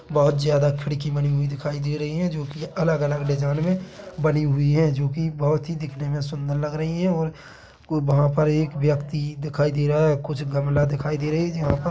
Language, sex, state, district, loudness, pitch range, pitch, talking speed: Hindi, male, Chhattisgarh, Bilaspur, -23 LUFS, 145-155 Hz, 150 Hz, 210 wpm